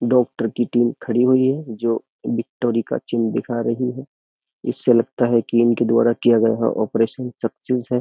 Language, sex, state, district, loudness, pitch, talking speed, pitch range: Hindi, male, Uttar Pradesh, Jyotiba Phule Nagar, -20 LUFS, 120 Hz, 180 wpm, 115-125 Hz